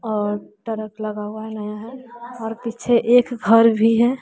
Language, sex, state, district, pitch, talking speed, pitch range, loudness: Hindi, female, Bihar, West Champaran, 225 Hz, 170 wpm, 215-240 Hz, -20 LUFS